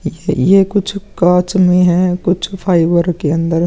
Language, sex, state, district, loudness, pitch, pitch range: Hindi, male, Bihar, Vaishali, -13 LUFS, 180 Hz, 170-190 Hz